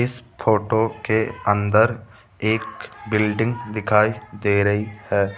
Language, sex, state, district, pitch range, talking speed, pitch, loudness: Hindi, male, Rajasthan, Jaipur, 105-110 Hz, 110 wpm, 110 Hz, -21 LUFS